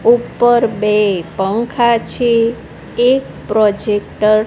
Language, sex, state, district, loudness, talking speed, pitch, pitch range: Gujarati, female, Gujarat, Gandhinagar, -14 LUFS, 95 wpm, 225 Hz, 210-240 Hz